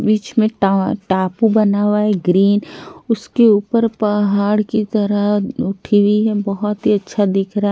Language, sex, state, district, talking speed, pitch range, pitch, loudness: Hindi, female, Bihar, Katihar, 185 wpm, 205-215 Hz, 210 Hz, -16 LUFS